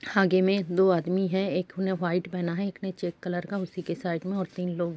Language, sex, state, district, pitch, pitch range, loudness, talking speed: Hindi, female, Bihar, East Champaran, 185 Hz, 175-190 Hz, -28 LUFS, 280 wpm